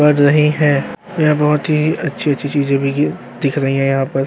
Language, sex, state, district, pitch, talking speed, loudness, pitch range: Hindi, male, Uttarakhand, Tehri Garhwal, 145 Hz, 195 wpm, -16 LUFS, 140-150 Hz